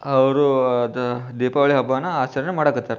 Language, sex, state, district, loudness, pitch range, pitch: Kannada, male, Karnataka, Bijapur, -20 LUFS, 125-140 Hz, 130 Hz